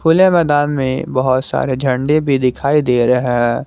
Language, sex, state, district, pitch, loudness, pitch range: Hindi, male, Jharkhand, Garhwa, 130 Hz, -15 LUFS, 125-150 Hz